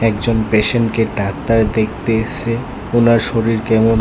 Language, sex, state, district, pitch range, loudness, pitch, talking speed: Bengali, male, Tripura, West Tripura, 110-115 Hz, -16 LUFS, 115 Hz, 120 wpm